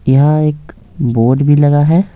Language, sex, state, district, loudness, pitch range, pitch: Hindi, male, Bihar, Patna, -11 LUFS, 135-150 Hz, 145 Hz